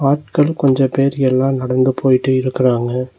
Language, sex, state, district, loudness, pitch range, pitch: Tamil, male, Tamil Nadu, Nilgiris, -15 LUFS, 130-135 Hz, 130 Hz